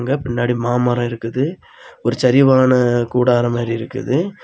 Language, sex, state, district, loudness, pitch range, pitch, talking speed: Tamil, male, Tamil Nadu, Kanyakumari, -17 LUFS, 120-130 Hz, 125 Hz, 120 wpm